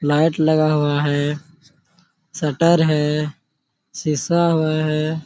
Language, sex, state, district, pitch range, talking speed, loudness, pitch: Hindi, male, Jharkhand, Sahebganj, 150-160 Hz, 100 wpm, -19 LUFS, 155 Hz